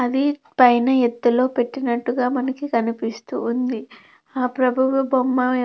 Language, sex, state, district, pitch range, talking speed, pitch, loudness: Telugu, female, Andhra Pradesh, Krishna, 240-260 Hz, 115 wpm, 250 Hz, -20 LUFS